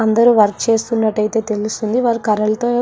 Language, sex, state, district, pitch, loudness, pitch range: Telugu, female, Andhra Pradesh, Srikakulam, 220 Hz, -16 LUFS, 215-230 Hz